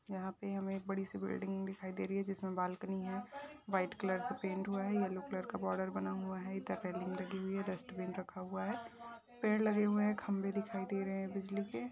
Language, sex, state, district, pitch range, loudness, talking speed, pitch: Hindi, female, Maharashtra, Sindhudurg, 185-205 Hz, -40 LUFS, 230 wpm, 195 Hz